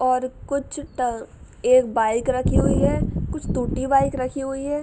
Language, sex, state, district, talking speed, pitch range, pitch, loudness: Hindi, female, Uttar Pradesh, Jalaun, 175 wpm, 255-280 Hz, 270 Hz, -22 LUFS